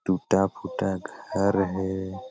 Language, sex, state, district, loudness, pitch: Hindi, male, Bihar, Supaul, -27 LUFS, 95 Hz